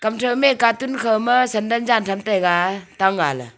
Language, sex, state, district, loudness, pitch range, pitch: Wancho, female, Arunachal Pradesh, Longding, -19 LUFS, 190-240 Hz, 220 Hz